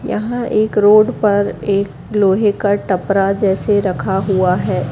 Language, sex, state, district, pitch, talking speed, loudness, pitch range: Hindi, female, Madhya Pradesh, Katni, 200 Hz, 145 wpm, -15 LUFS, 195-210 Hz